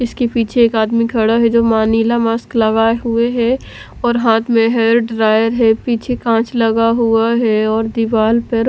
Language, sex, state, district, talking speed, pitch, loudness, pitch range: Hindi, female, Punjab, Fazilka, 185 wpm, 230 Hz, -14 LUFS, 225-235 Hz